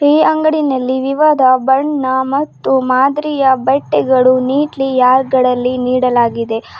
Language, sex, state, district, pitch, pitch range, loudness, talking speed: Kannada, female, Karnataka, Bidar, 265 Hz, 255-280 Hz, -13 LUFS, 95 wpm